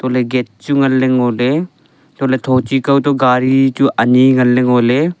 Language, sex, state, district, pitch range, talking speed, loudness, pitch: Wancho, male, Arunachal Pradesh, Longding, 125-140 Hz, 205 wpm, -13 LUFS, 130 Hz